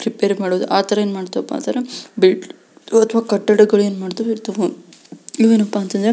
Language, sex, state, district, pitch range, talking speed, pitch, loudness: Kannada, female, Karnataka, Belgaum, 200-225 Hz, 165 wpm, 210 Hz, -17 LUFS